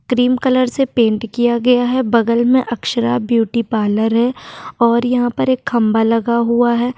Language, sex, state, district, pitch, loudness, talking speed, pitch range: Hindi, female, Maharashtra, Chandrapur, 240 Hz, -15 LUFS, 180 wpm, 230-250 Hz